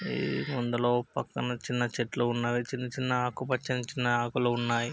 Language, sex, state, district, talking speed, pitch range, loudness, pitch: Telugu, male, Andhra Pradesh, Krishna, 145 wpm, 120-125 Hz, -30 LUFS, 120 Hz